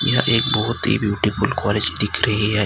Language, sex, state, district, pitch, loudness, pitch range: Hindi, male, Maharashtra, Gondia, 105 Hz, -19 LUFS, 105-120 Hz